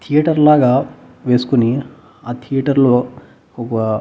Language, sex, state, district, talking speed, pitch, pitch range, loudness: Telugu, male, Andhra Pradesh, Annamaya, 90 wpm, 130 Hz, 120-140 Hz, -15 LUFS